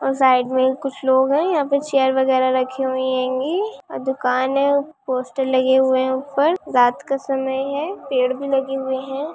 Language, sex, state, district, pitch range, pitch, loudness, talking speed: Hindi, female, Chhattisgarh, Kabirdham, 260-280 Hz, 265 Hz, -19 LUFS, 190 wpm